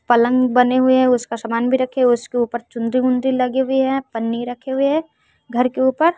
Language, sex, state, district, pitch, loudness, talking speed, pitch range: Hindi, male, Bihar, West Champaran, 255 Hz, -18 LUFS, 215 wpm, 240-265 Hz